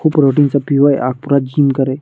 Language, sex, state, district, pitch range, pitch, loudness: Maithili, male, Bihar, Madhepura, 135-145 Hz, 140 Hz, -13 LUFS